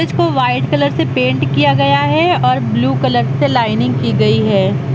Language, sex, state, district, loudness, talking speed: Hindi, female, Uttar Pradesh, Lucknow, -13 LUFS, 195 wpm